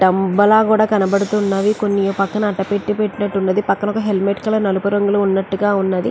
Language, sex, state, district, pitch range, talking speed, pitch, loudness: Telugu, female, Andhra Pradesh, Chittoor, 195-210 Hz, 175 wpm, 205 Hz, -17 LUFS